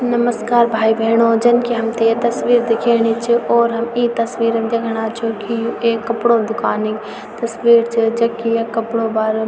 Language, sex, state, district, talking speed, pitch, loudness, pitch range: Garhwali, female, Uttarakhand, Tehri Garhwal, 190 wpm, 230 Hz, -16 LUFS, 225-235 Hz